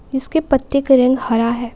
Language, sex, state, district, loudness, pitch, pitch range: Hindi, female, Jharkhand, Palamu, -16 LUFS, 265 Hz, 240-275 Hz